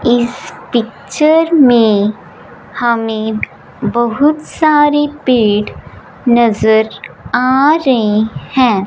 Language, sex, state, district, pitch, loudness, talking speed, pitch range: Hindi, female, Punjab, Fazilka, 240 Hz, -12 LUFS, 75 wpm, 220-285 Hz